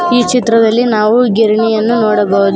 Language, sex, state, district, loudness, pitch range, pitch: Kannada, female, Karnataka, Koppal, -11 LUFS, 215-240 Hz, 225 Hz